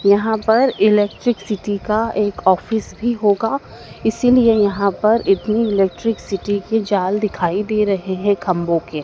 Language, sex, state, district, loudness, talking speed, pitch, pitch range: Hindi, female, Madhya Pradesh, Dhar, -17 LUFS, 160 wpm, 210 Hz, 195-220 Hz